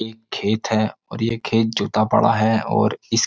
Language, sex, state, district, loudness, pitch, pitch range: Hindi, male, Uttar Pradesh, Jyotiba Phule Nagar, -20 LUFS, 110 Hz, 110-115 Hz